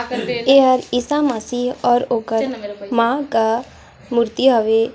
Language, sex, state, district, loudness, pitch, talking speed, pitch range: Hindi, female, Chhattisgarh, Sarguja, -17 LUFS, 245 Hz, 110 wpm, 225-255 Hz